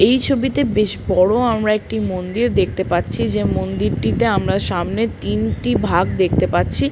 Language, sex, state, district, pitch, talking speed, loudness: Bengali, female, West Bengal, Paschim Medinipur, 185 Hz, 145 wpm, -18 LUFS